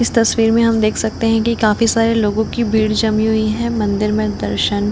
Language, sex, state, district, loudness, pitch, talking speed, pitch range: Hindi, female, Jharkhand, Jamtara, -16 LUFS, 220 Hz, 220 wpm, 215-230 Hz